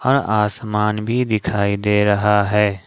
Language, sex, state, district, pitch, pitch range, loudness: Hindi, male, Jharkhand, Ranchi, 105 Hz, 105-110 Hz, -18 LUFS